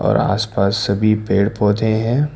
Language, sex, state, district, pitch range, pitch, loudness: Hindi, male, Karnataka, Bangalore, 100-110 Hz, 105 Hz, -17 LUFS